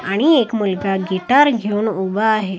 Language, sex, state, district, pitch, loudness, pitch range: Marathi, female, Maharashtra, Washim, 210 Hz, -17 LUFS, 190-225 Hz